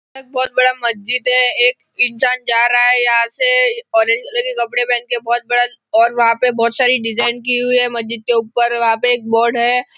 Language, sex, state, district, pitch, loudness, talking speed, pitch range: Hindi, male, Maharashtra, Nagpur, 245 Hz, -13 LUFS, 215 wpm, 235-255 Hz